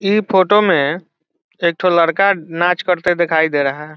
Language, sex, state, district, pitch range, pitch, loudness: Hindi, male, Bihar, Saran, 160-190 Hz, 175 Hz, -15 LUFS